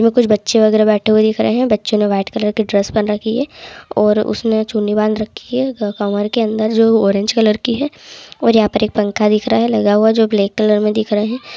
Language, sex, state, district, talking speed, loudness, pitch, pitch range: Hindi, male, West Bengal, Kolkata, 255 wpm, -15 LUFS, 215 Hz, 210-225 Hz